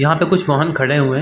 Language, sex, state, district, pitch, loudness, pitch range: Hindi, male, Uttar Pradesh, Varanasi, 145 Hz, -16 LUFS, 140-165 Hz